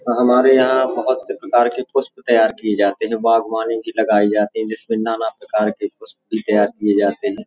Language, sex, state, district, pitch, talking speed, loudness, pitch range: Hindi, male, Uttar Pradesh, Hamirpur, 115 Hz, 210 wpm, -17 LUFS, 110-130 Hz